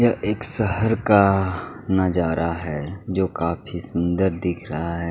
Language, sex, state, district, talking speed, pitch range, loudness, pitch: Hindi, male, Chhattisgarh, Kabirdham, 140 wpm, 85-100 Hz, -22 LUFS, 95 Hz